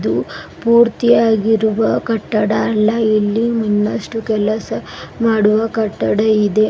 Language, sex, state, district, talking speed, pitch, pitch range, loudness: Kannada, female, Karnataka, Bidar, 90 wpm, 220 Hz, 215-225 Hz, -15 LUFS